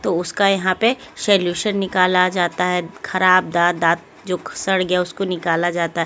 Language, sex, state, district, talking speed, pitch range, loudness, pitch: Hindi, female, Haryana, Jhajjar, 180 wpm, 175-190 Hz, -18 LUFS, 180 Hz